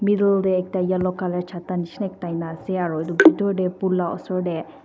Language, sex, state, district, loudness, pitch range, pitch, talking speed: Nagamese, female, Nagaland, Dimapur, -22 LUFS, 175-190 Hz, 180 Hz, 210 wpm